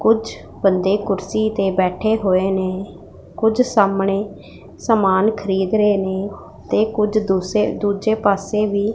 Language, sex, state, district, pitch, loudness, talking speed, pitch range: Punjabi, female, Punjab, Pathankot, 200 Hz, -18 LUFS, 135 wpm, 190-215 Hz